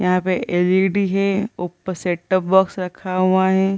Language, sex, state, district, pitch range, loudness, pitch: Hindi, female, Bihar, Gaya, 180-190 Hz, -19 LUFS, 185 Hz